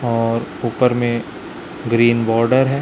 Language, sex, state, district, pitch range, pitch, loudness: Hindi, male, Chhattisgarh, Raipur, 115-125 Hz, 120 Hz, -17 LUFS